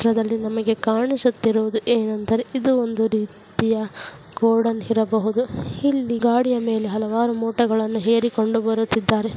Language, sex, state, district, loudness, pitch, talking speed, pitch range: Kannada, female, Karnataka, Mysore, -21 LUFS, 225 Hz, 110 wpm, 220-235 Hz